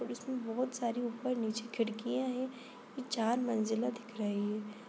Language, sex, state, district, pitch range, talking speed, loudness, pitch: Hindi, female, Bihar, Sitamarhi, 225-255 Hz, 145 wpm, -36 LUFS, 240 Hz